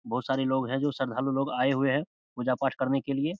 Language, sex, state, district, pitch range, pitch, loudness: Hindi, male, Bihar, Samastipur, 130-135 Hz, 135 Hz, -28 LUFS